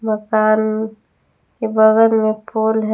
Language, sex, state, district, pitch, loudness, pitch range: Hindi, female, Jharkhand, Palamu, 220 Hz, -16 LUFS, 215-220 Hz